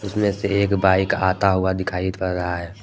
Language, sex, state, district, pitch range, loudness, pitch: Hindi, male, Jharkhand, Deoghar, 95-100 Hz, -21 LUFS, 95 Hz